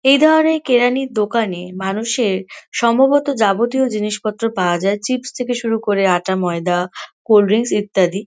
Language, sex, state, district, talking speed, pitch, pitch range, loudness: Bengali, female, West Bengal, Kolkata, 140 wpm, 215 Hz, 195-245 Hz, -17 LUFS